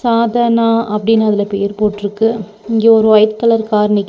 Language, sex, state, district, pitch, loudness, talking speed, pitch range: Tamil, female, Tamil Nadu, Nilgiris, 220 Hz, -13 LUFS, 160 wpm, 210-230 Hz